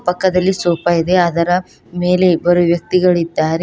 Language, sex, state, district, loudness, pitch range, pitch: Kannada, female, Karnataka, Koppal, -15 LUFS, 170-180 Hz, 175 Hz